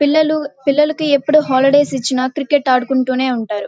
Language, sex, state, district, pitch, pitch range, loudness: Telugu, female, Andhra Pradesh, Krishna, 280 Hz, 255-295 Hz, -15 LUFS